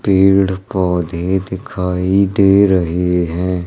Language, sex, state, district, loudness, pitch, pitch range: Hindi, male, Madhya Pradesh, Umaria, -15 LUFS, 95 Hz, 90-95 Hz